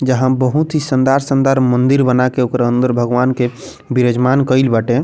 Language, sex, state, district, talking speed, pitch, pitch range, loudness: Bhojpuri, male, Bihar, Muzaffarpur, 165 wpm, 130 Hz, 125-135 Hz, -14 LUFS